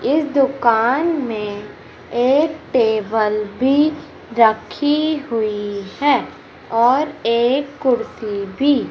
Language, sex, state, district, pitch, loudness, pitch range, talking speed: Hindi, female, Madhya Pradesh, Umaria, 245 Hz, -18 LUFS, 220-285 Hz, 85 wpm